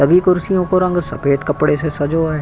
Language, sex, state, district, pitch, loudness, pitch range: Hindi, male, Uttar Pradesh, Hamirpur, 160 Hz, -16 LUFS, 145-180 Hz